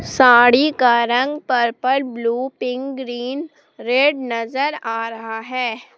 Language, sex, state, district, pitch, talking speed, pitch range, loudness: Hindi, female, Jharkhand, Palamu, 250 Hz, 120 wpm, 235-265 Hz, -18 LUFS